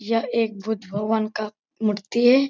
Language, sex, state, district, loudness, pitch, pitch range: Hindi, female, Bihar, Jamui, -24 LUFS, 220 Hz, 210-230 Hz